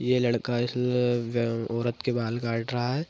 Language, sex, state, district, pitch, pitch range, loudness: Hindi, female, Bihar, Madhepura, 120 Hz, 115-125 Hz, -27 LUFS